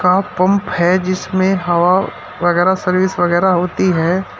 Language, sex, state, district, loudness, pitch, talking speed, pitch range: Hindi, male, Uttar Pradesh, Shamli, -15 LUFS, 185 Hz, 135 wpm, 175-190 Hz